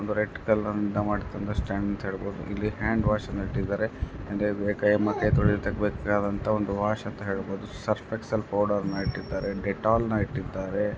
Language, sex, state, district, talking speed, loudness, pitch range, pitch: Kannada, male, Karnataka, Dharwad, 135 wpm, -28 LUFS, 100-105 Hz, 105 Hz